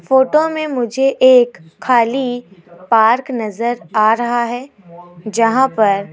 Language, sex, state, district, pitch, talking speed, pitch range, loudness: Hindi, female, Rajasthan, Jaipur, 235 Hz, 125 wpm, 215-255 Hz, -15 LUFS